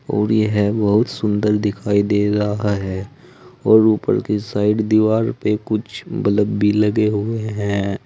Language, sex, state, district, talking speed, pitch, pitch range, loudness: Hindi, male, Uttar Pradesh, Saharanpur, 150 wpm, 105 Hz, 105-110 Hz, -18 LUFS